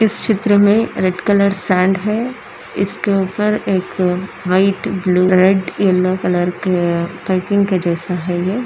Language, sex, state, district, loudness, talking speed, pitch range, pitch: Hindi, female, Andhra Pradesh, Anantapur, -16 LUFS, 145 wpm, 180-200 Hz, 190 Hz